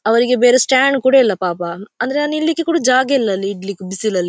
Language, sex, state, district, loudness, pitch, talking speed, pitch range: Kannada, female, Karnataka, Dakshina Kannada, -15 LUFS, 245 Hz, 195 wpm, 195-270 Hz